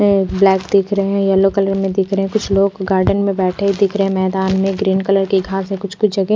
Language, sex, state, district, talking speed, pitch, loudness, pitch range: Hindi, female, Odisha, Khordha, 265 wpm, 195 Hz, -16 LUFS, 195-200 Hz